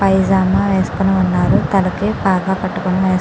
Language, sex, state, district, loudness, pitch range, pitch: Telugu, female, Andhra Pradesh, Chittoor, -15 LUFS, 185-195 Hz, 190 Hz